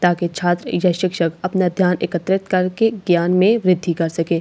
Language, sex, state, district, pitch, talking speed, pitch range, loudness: Hindi, female, Delhi, New Delhi, 180 Hz, 205 wpm, 170-185 Hz, -18 LUFS